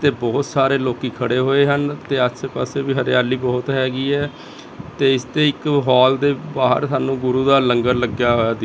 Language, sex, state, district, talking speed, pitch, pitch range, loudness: Punjabi, male, Chandigarh, Chandigarh, 200 wpm, 130 Hz, 125-140 Hz, -18 LUFS